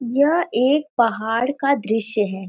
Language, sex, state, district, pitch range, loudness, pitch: Hindi, female, Uttar Pradesh, Varanasi, 220-280 Hz, -20 LUFS, 240 Hz